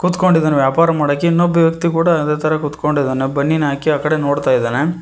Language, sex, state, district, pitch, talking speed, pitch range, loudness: Kannada, male, Karnataka, Koppal, 155 Hz, 180 wpm, 145-165 Hz, -15 LUFS